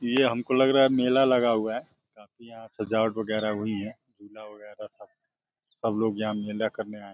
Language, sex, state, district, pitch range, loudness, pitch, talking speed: Hindi, male, Uttar Pradesh, Deoria, 105-125 Hz, -26 LUFS, 110 Hz, 210 wpm